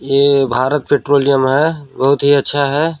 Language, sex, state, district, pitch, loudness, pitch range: Hindi, male, Chhattisgarh, Balrampur, 140 Hz, -14 LUFS, 135-145 Hz